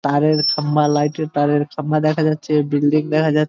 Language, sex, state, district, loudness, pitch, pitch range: Bengali, male, West Bengal, Malda, -18 LUFS, 150 Hz, 145-155 Hz